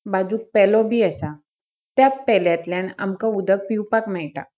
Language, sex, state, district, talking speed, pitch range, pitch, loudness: Konkani, female, Goa, North and South Goa, 130 wpm, 180-225 Hz, 200 Hz, -20 LUFS